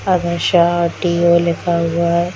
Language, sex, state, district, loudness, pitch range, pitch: Hindi, female, Bihar, Darbhanga, -15 LUFS, 170-175 Hz, 170 Hz